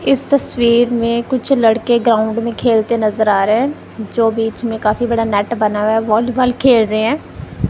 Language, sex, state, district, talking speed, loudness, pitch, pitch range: Hindi, female, Punjab, Kapurthala, 185 wpm, -15 LUFS, 230 Hz, 220-240 Hz